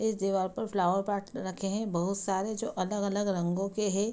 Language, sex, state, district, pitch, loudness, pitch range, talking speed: Hindi, female, Bihar, Begusarai, 195 Hz, -31 LUFS, 190-205 Hz, 205 wpm